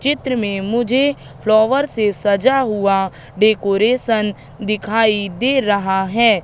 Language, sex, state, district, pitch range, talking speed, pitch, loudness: Hindi, female, Madhya Pradesh, Katni, 200-240 Hz, 110 wpm, 215 Hz, -17 LUFS